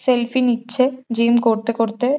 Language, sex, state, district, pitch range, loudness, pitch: Bengali, female, West Bengal, Jhargram, 230-255 Hz, -18 LUFS, 240 Hz